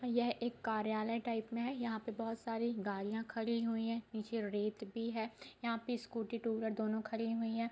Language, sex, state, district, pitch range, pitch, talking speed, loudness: Hindi, female, Bihar, East Champaran, 220-230 Hz, 225 Hz, 235 wpm, -40 LUFS